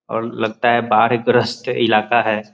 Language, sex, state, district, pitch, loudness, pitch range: Hindi, male, Bihar, Muzaffarpur, 115 Hz, -17 LUFS, 110-120 Hz